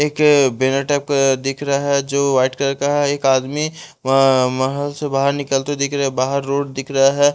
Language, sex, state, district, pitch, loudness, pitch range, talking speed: Hindi, male, Bihar, West Champaran, 140 Hz, -17 LUFS, 135-145 Hz, 210 wpm